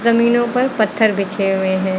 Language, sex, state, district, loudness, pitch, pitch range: Hindi, female, Uttar Pradesh, Lucknow, -16 LUFS, 215 Hz, 195-235 Hz